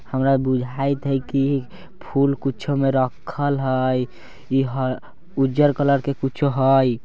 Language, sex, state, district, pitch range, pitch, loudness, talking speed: Bajjika, male, Bihar, Vaishali, 130-140 Hz, 135 Hz, -21 LUFS, 135 wpm